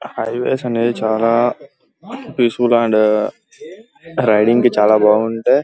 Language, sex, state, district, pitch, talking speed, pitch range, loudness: Telugu, male, Andhra Pradesh, Guntur, 120 Hz, 115 wpm, 110-125 Hz, -15 LUFS